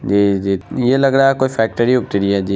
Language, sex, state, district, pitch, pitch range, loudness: Hindi, male, Bihar, Araria, 110 Hz, 100-130 Hz, -15 LUFS